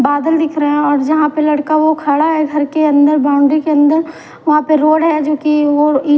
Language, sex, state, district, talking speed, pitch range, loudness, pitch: Hindi, female, Punjab, Fazilka, 250 wpm, 290-310 Hz, -13 LUFS, 300 Hz